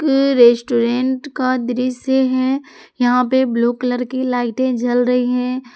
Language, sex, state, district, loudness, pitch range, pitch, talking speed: Hindi, female, Jharkhand, Palamu, -17 LUFS, 245-260 Hz, 250 Hz, 145 wpm